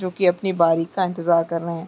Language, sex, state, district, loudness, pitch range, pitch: Hindi, female, Chhattisgarh, Raigarh, -20 LUFS, 165-185 Hz, 170 Hz